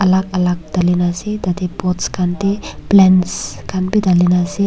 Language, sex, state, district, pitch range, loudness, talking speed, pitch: Nagamese, female, Nagaland, Kohima, 180-195 Hz, -16 LUFS, 190 wpm, 180 Hz